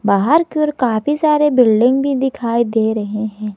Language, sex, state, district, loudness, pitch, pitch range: Hindi, female, Jharkhand, Garhwa, -15 LUFS, 245 Hz, 220-295 Hz